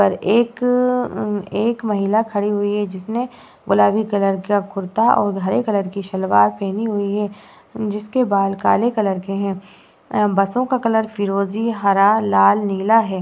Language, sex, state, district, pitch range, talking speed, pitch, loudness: Hindi, female, Uttar Pradesh, Muzaffarnagar, 195-220 Hz, 155 wpm, 205 Hz, -18 LUFS